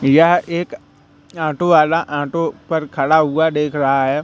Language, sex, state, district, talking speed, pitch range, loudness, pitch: Hindi, male, Madhya Pradesh, Katni, 140 wpm, 145-165 Hz, -16 LUFS, 155 Hz